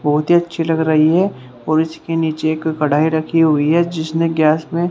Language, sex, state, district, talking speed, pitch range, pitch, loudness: Hindi, male, Haryana, Rohtak, 210 wpm, 155-165 Hz, 160 Hz, -16 LUFS